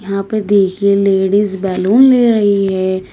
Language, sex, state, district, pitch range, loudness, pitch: Hindi, female, Uttar Pradesh, Shamli, 190-205 Hz, -12 LUFS, 195 Hz